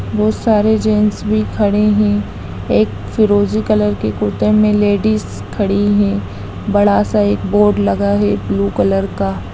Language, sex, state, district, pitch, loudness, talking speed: Hindi, female, Bihar, Sitamarhi, 105 Hz, -15 LUFS, 145 wpm